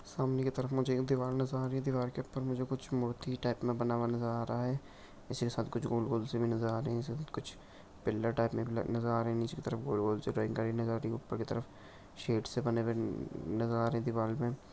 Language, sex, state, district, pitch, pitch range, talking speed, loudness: Hindi, male, Karnataka, Belgaum, 115 Hz, 115-130 Hz, 255 wpm, -35 LUFS